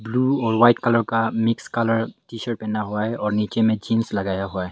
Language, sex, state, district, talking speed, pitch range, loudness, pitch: Hindi, male, Meghalaya, West Garo Hills, 240 wpm, 105-115 Hz, -21 LUFS, 115 Hz